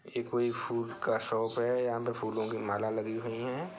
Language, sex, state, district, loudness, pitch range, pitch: Bhojpuri, male, Bihar, Saran, -33 LUFS, 110-120 Hz, 115 Hz